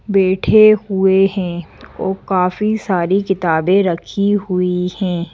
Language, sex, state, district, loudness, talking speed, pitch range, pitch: Hindi, female, Madhya Pradesh, Bhopal, -15 LUFS, 110 wpm, 180-200 Hz, 190 Hz